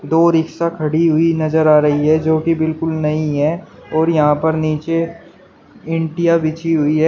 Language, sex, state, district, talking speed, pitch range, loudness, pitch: Hindi, male, Uttar Pradesh, Shamli, 170 wpm, 155-165 Hz, -16 LUFS, 160 Hz